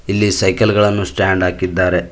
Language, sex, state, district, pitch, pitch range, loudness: Kannada, male, Karnataka, Koppal, 95 Hz, 90-105 Hz, -15 LUFS